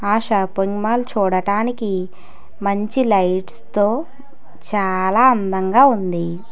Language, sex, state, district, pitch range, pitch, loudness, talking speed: Telugu, female, Telangana, Hyderabad, 190-230 Hz, 205 Hz, -18 LUFS, 90 wpm